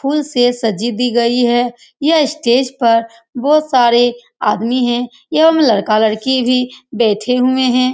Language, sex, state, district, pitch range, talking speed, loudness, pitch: Hindi, female, Bihar, Saran, 235-265 Hz, 135 wpm, -14 LUFS, 245 Hz